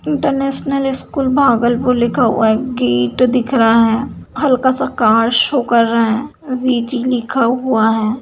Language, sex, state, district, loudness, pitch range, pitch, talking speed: Hindi, female, Bihar, Bhagalpur, -14 LUFS, 230-265 Hz, 250 Hz, 155 wpm